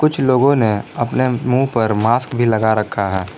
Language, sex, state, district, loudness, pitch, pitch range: Hindi, male, Jharkhand, Garhwa, -16 LUFS, 120 Hz, 110-130 Hz